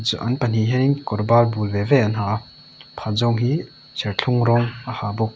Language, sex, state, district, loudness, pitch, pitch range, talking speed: Mizo, male, Mizoram, Aizawl, -20 LUFS, 115 Hz, 110-125 Hz, 225 wpm